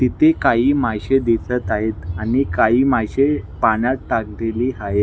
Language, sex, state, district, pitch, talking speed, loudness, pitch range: Marathi, male, Maharashtra, Nagpur, 115 Hz, 130 wpm, -18 LUFS, 110-135 Hz